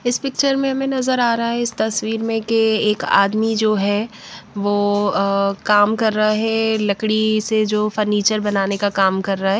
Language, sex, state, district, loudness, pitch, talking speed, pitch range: Hindi, female, Bihar, West Champaran, -18 LUFS, 215 Hz, 195 wpm, 205-225 Hz